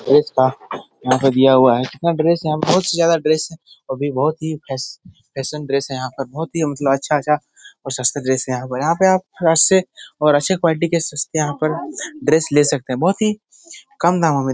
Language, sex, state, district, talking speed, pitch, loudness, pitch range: Hindi, male, Bihar, Jahanabad, 225 wpm, 155 Hz, -18 LUFS, 135-170 Hz